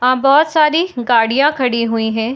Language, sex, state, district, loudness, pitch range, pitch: Hindi, female, Bihar, Saharsa, -14 LUFS, 230-295 Hz, 255 Hz